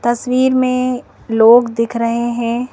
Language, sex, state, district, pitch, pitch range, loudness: Hindi, female, Madhya Pradesh, Bhopal, 240 Hz, 235-255 Hz, -14 LUFS